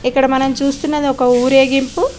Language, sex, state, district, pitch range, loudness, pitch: Telugu, female, Telangana, Karimnagar, 265-275 Hz, -14 LUFS, 270 Hz